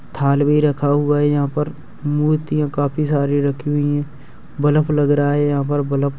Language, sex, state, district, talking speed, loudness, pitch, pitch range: Hindi, male, Uttar Pradesh, Hamirpur, 205 wpm, -18 LUFS, 145 Hz, 145-150 Hz